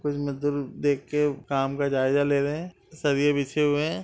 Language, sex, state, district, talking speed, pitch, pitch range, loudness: Hindi, male, Uttar Pradesh, Etah, 195 wpm, 145 Hz, 140-150 Hz, -25 LUFS